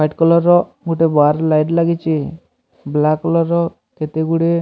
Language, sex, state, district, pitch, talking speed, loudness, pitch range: Odia, male, Odisha, Sambalpur, 165 Hz, 155 wpm, -16 LUFS, 155-170 Hz